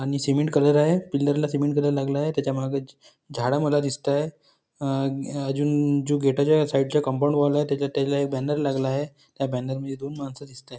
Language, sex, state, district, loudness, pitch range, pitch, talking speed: Marathi, male, Maharashtra, Nagpur, -24 LUFS, 135-145 Hz, 140 Hz, 215 wpm